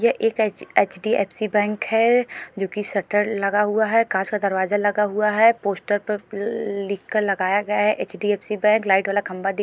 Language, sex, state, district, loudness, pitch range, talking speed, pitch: Hindi, female, Goa, North and South Goa, -21 LUFS, 200-215 Hz, 175 wpm, 205 Hz